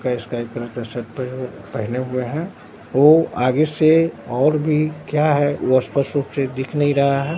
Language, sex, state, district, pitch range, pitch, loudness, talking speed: Hindi, male, Bihar, Katihar, 125-150 Hz, 135 Hz, -19 LUFS, 195 wpm